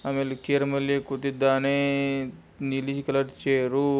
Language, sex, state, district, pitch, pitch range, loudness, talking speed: Kannada, male, Karnataka, Bijapur, 135 Hz, 135-140 Hz, -26 LUFS, 120 wpm